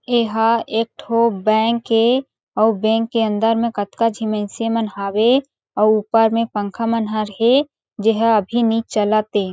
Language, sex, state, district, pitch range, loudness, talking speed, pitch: Chhattisgarhi, female, Chhattisgarh, Jashpur, 215-230 Hz, -18 LUFS, 165 wpm, 225 Hz